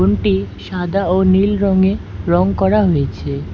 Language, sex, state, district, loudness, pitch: Bengali, female, West Bengal, Alipurduar, -16 LUFS, 180 Hz